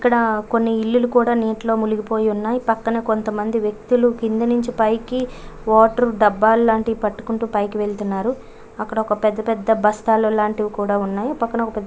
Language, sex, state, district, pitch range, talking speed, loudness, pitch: Telugu, female, Karnataka, Bellary, 215-230 Hz, 150 wpm, -19 LUFS, 225 Hz